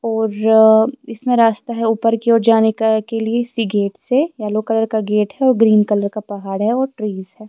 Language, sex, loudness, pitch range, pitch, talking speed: Urdu, female, -16 LUFS, 210-230 Hz, 220 Hz, 230 wpm